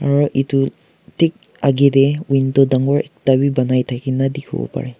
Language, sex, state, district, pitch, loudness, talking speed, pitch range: Nagamese, male, Nagaland, Kohima, 135 Hz, -17 LUFS, 155 wpm, 130-140 Hz